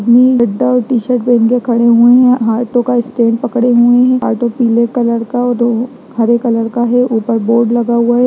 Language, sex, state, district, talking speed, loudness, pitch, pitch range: Hindi, female, Bihar, Jamui, 220 wpm, -11 LUFS, 240 Hz, 235-245 Hz